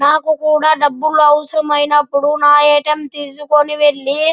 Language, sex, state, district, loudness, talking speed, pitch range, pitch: Telugu, male, Andhra Pradesh, Anantapur, -13 LUFS, 165 wpm, 290-305 Hz, 295 Hz